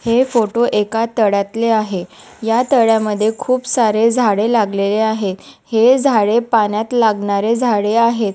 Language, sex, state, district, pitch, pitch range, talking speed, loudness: Marathi, female, Maharashtra, Nagpur, 225 Hz, 210-235 Hz, 130 wpm, -15 LUFS